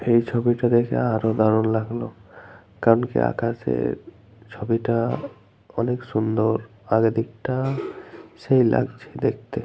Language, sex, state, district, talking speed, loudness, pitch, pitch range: Bengali, male, Jharkhand, Jamtara, 110 wpm, -23 LUFS, 115 Hz, 110-120 Hz